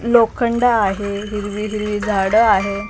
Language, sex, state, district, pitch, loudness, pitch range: Marathi, female, Maharashtra, Mumbai Suburban, 210 Hz, -17 LUFS, 200-225 Hz